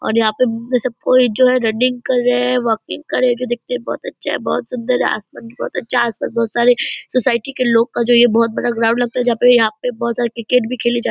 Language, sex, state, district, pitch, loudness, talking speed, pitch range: Hindi, female, Bihar, Purnia, 240 Hz, -16 LUFS, 290 wpm, 235-250 Hz